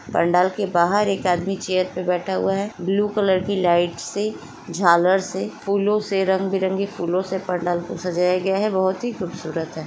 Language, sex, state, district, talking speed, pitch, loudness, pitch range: Hindi, female, Chhattisgarh, Sukma, 195 wpm, 190 Hz, -21 LUFS, 175-195 Hz